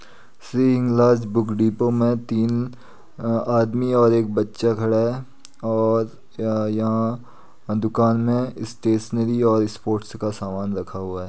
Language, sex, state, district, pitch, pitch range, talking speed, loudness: Hindi, male, Uttar Pradesh, Etah, 115 Hz, 110-120 Hz, 135 wpm, -21 LUFS